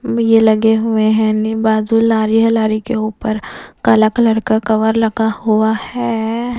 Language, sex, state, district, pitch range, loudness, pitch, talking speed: Hindi, female, Bihar, West Champaran, 220-225 Hz, -14 LUFS, 220 Hz, 155 wpm